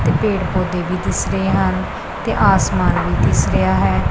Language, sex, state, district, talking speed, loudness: Punjabi, female, Punjab, Pathankot, 190 wpm, -17 LUFS